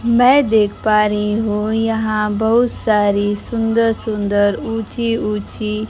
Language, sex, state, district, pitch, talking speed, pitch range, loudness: Hindi, female, Bihar, Kaimur, 215 Hz, 120 wpm, 210-225 Hz, -16 LUFS